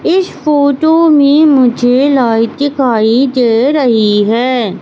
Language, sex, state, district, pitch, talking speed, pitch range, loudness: Hindi, female, Madhya Pradesh, Katni, 260 Hz, 110 wpm, 235-290 Hz, -10 LUFS